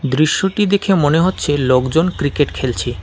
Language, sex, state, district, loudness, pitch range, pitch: Bengali, male, West Bengal, Alipurduar, -16 LUFS, 145-190 Hz, 155 Hz